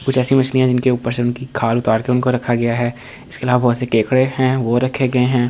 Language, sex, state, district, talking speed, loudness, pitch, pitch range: Hindi, male, Delhi, New Delhi, 260 wpm, -17 LUFS, 125 Hz, 120-130 Hz